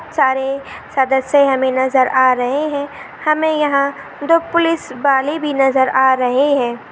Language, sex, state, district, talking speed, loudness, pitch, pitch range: Hindi, female, Maharashtra, Pune, 145 wpm, -15 LUFS, 275 Hz, 260-295 Hz